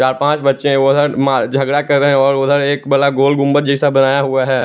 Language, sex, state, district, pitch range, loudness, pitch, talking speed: Hindi, male, Chandigarh, Chandigarh, 135-145 Hz, -13 LUFS, 140 Hz, 220 wpm